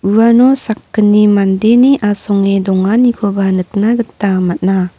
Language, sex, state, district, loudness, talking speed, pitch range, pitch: Garo, female, Meghalaya, North Garo Hills, -11 LUFS, 95 wpm, 195-230 Hz, 205 Hz